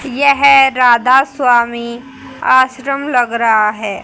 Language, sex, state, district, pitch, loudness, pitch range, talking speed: Hindi, female, Haryana, Charkhi Dadri, 255 Hz, -11 LUFS, 235-270 Hz, 105 wpm